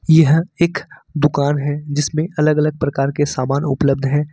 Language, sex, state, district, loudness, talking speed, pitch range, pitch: Hindi, male, Jharkhand, Ranchi, -17 LUFS, 165 wpm, 145-155 Hz, 150 Hz